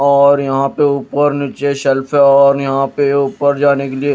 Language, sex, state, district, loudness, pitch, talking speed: Hindi, male, Odisha, Nuapada, -13 LUFS, 140 Hz, 200 wpm